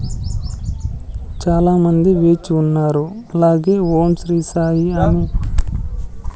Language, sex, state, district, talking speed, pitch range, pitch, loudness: Telugu, male, Andhra Pradesh, Sri Satya Sai, 75 wpm, 150-170 Hz, 165 Hz, -16 LUFS